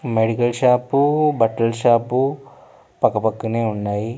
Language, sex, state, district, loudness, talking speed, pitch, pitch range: Telugu, male, Andhra Pradesh, Anantapur, -19 LUFS, 85 wpm, 120 Hz, 110-130 Hz